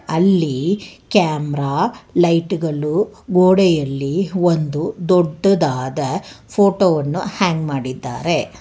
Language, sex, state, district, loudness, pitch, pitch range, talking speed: Kannada, female, Karnataka, Bangalore, -18 LUFS, 170 Hz, 150-190 Hz, 65 wpm